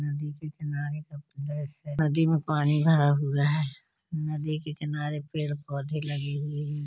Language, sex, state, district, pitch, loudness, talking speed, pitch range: Hindi, male, Uttar Pradesh, Hamirpur, 150 Hz, -29 LUFS, 155 wpm, 145-150 Hz